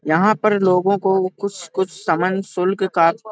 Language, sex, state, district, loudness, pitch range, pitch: Hindi, male, Uttar Pradesh, Hamirpur, -18 LUFS, 180-200 Hz, 190 Hz